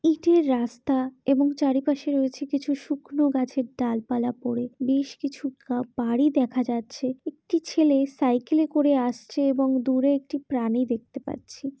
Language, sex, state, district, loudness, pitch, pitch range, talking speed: Bengali, female, West Bengal, Jhargram, -25 LUFS, 270 Hz, 250-290 Hz, 135 wpm